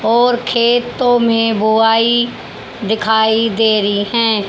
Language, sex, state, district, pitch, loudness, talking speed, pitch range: Hindi, female, Haryana, Charkhi Dadri, 225 Hz, -13 LUFS, 105 wpm, 220-240 Hz